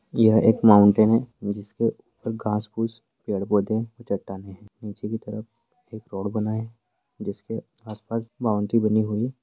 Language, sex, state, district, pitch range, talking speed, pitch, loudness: Hindi, male, Bihar, Sitamarhi, 105-115 Hz, 140 wpm, 110 Hz, -23 LUFS